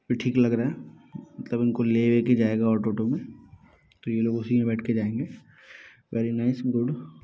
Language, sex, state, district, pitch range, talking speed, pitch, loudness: Hindi, male, Bihar, Muzaffarpur, 115-120 Hz, 200 wpm, 115 Hz, -25 LUFS